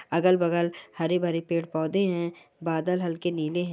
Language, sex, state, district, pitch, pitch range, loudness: Hindi, female, Chhattisgarh, Kabirdham, 170 Hz, 165-175 Hz, -27 LUFS